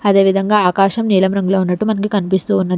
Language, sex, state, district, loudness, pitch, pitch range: Telugu, female, Telangana, Hyderabad, -15 LUFS, 195 Hz, 190-205 Hz